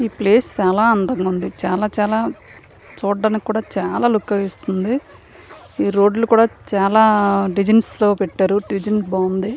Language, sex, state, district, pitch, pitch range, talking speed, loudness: Telugu, female, Andhra Pradesh, Srikakulam, 205 Hz, 195-220 Hz, 130 wpm, -17 LUFS